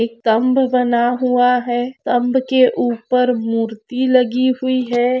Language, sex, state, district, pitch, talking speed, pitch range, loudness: Hindi, female, Rajasthan, Churu, 250 Hz, 140 wpm, 240-255 Hz, -16 LUFS